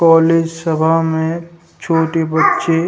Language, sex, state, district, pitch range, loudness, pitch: Hindi, male, Bihar, Jahanabad, 160-165 Hz, -15 LUFS, 165 Hz